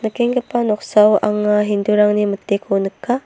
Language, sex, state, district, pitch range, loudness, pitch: Garo, female, Meghalaya, North Garo Hills, 210-230 Hz, -16 LUFS, 210 Hz